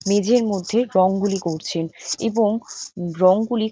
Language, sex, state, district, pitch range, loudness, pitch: Bengali, female, West Bengal, North 24 Parganas, 185-225 Hz, -20 LUFS, 200 Hz